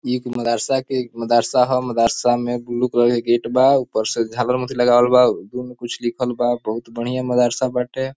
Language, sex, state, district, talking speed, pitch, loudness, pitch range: Bhojpuri, male, Bihar, East Champaran, 200 wpm, 120 Hz, -19 LUFS, 120-125 Hz